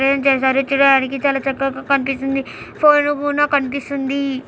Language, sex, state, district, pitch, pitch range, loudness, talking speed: Telugu, male, Andhra Pradesh, Anantapur, 275 Hz, 270-280 Hz, -17 LUFS, 105 wpm